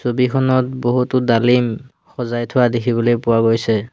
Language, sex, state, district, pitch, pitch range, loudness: Assamese, male, Assam, Hailakandi, 120 Hz, 115-125 Hz, -17 LUFS